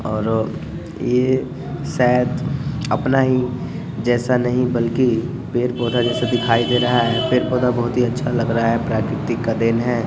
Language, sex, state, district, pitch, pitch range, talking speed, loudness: Hindi, male, Bihar, Sitamarhi, 125 Hz, 115-130 Hz, 150 wpm, -19 LUFS